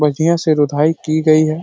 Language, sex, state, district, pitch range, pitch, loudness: Hindi, male, Uttar Pradesh, Deoria, 150-160 Hz, 155 Hz, -15 LUFS